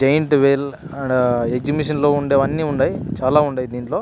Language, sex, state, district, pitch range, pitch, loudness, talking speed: Telugu, male, Andhra Pradesh, Anantapur, 130-150 Hz, 140 Hz, -18 LUFS, 180 wpm